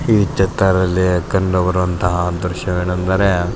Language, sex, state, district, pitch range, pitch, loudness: Kannada, male, Karnataka, Belgaum, 90-95 Hz, 90 Hz, -17 LUFS